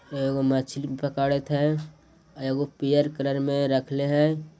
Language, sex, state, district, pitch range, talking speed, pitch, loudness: Magahi, male, Bihar, Jahanabad, 140-150 Hz, 155 wpm, 140 Hz, -25 LUFS